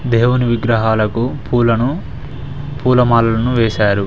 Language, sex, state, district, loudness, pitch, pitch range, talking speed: Telugu, male, Telangana, Mahabubabad, -15 LUFS, 120 Hz, 115-125 Hz, 75 wpm